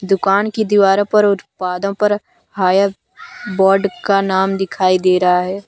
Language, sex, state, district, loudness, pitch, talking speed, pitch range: Hindi, female, Jharkhand, Deoghar, -15 LUFS, 195 Hz, 150 wpm, 190-205 Hz